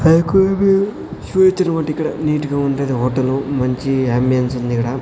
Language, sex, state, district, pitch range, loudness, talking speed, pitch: Telugu, male, Andhra Pradesh, Sri Satya Sai, 130-165 Hz, -17 LUFS, 85 wpm, 140 Hz